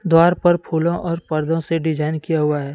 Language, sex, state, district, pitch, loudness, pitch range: Hindi, male, Jharkhand, Deoghar, 165 Hz, -19 LUFS, 155-170 Hz